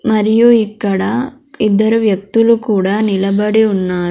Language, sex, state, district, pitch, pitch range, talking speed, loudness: Telugu, female, Andhra Pradesh, Sri Satya Sai, 215 Hz, 195-225 Hz, 100 wpm, -13 LUFS